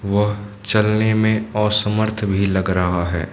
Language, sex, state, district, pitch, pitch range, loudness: Hindi, male, Manipur, Imphal West, 105 Hz, 95-110 Hz, -19 LUFS